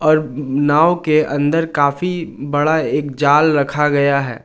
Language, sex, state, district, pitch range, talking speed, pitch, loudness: Hindi, male, Jharkhand, Garhwa, 140-155 Hz, 150 wpm, 145 Hz, -16 LUFS